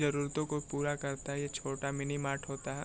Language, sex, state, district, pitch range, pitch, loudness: Hindi, male, Bihar, Begusarai, 140-145 Hz, 140 Hz, -36 LUFS